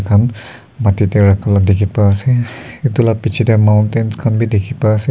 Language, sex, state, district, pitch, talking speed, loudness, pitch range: Nagamese, male, Nagaland, Kohima, 110 Hz, 200 wpm, -14 LUFS, 105-120 Hz